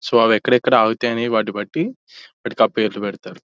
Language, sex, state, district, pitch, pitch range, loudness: Telugu, male, Telangana, Nalgonda, 110 Hz, 105-120 Hz, -18 LUFS